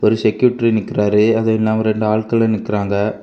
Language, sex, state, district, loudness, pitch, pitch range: Tamil, male, Tamil Nadu, Kanyakumari, -16 LUFS, 110 Hz, 105-110 Hz